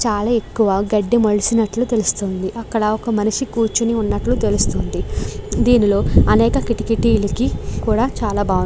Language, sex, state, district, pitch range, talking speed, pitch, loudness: Telugu, female, Andhra Pradesh, Krishna, 205-230 Hz, 120 wpm, 215 Hz, -18 LUFS